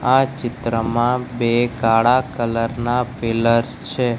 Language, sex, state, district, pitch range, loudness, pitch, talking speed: Gujarati, male, Gujarat, Gandhinagar, 115-125 Hz, -19 LUFS, 120 Hz, 115 wpm